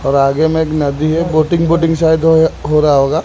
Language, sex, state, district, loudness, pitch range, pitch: Hindi, male, Odisha, Khordha, -13 LUFS, 145-160 Hz, 160 Hz